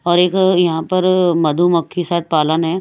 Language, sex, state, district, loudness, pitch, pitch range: Hindi, female, Odisha, Malkangiri, -15 LUFS, 175 Hz, 165-185 Hz